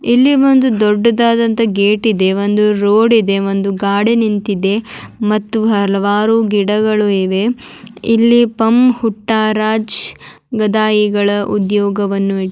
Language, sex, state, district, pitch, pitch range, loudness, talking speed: Kannada, male, Karnataka, Dharwad, 215 Hz, 200-225 Hz, -13 LUFS, 105 wpm